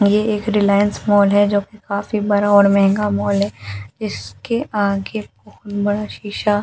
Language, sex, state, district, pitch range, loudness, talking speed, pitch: Hindi, female, Delhi, New Delhi, 200-210 Hz, -18 LUFS, 170 wpm, 205 Hz